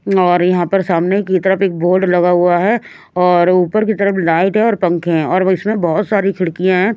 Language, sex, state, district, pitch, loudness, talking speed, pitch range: Hindi, female, Haryana, Rohtak, 185 Hz, -14 LUFS, 225 wpm, 175-200 Hz